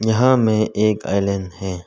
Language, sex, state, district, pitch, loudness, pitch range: Hindi, male, Arunachal Pradesh, Lower Dibang Valley, 105 Hz, -18 LUFS, 95-110 Hz